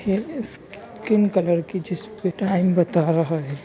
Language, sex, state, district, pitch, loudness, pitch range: Hindi, male, Bihar, Bhagalpur, 185 Hz, -22 LUFS, 170-195 Hz